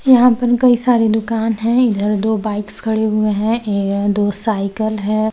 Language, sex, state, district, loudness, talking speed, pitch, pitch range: Hindi, female, Chhattisgarh, Balrampur, -16 LUFS, 180 wpm, 220 Hz, 210-230 Hz